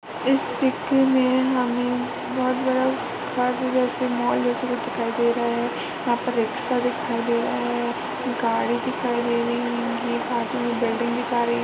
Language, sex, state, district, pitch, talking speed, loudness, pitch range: Hindi, female, Uttar Pradesh, Jalaun, 245 Hz, 160 wpm, -23 LUFS, 235-255 Hz